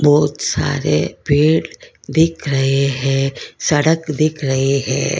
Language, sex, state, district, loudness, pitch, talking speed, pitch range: Hindi, female, Karnataka, Bangalore, -17 LUFS, 145 Hz, 115 wpm, 135-155 Hz